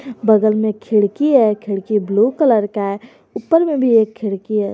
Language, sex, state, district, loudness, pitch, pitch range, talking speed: Hindi, female, Jharkhand, Garhwa, -16 LUFS, 215 Hz, 205-240 Hz, 190 wpm